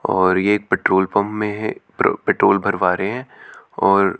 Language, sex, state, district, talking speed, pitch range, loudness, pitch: Hindi, male, Chandigarh, Chandigarh, 185 wpm, 95-105 Hz, -18 LUFS, 100 Hz